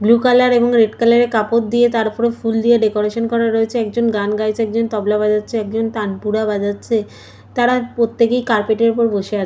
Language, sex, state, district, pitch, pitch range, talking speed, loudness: Bengali, female, West Bengal, Malda, 225 Hz, 215-235 Hz, 185 wpm, -16 LUFS